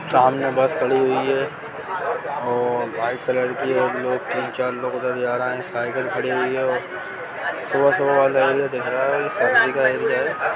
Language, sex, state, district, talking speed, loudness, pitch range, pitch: Hindi, male, Chhattisgarh, Sarguja, 135 wpm, -21 LUFS, 125-135 Hz, 130 Hz